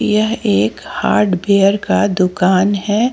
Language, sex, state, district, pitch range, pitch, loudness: Hindi, female, Jharkhand, Ranchi, 185-210 Hz, 200 Hz, -15 LUFS